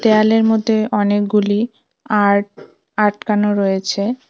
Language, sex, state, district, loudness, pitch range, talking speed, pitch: Bengali, female, West Bengal, Cooch Behar, -16 LUFS, 205-220 Hz, 85 wpm, 210 Hz